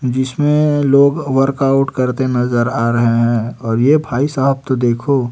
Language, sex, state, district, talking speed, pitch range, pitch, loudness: Hindi, male, Chhattisgarh, Raipur, 160 wpm, 120-140 Hz, 130 Hz, -15 LUFS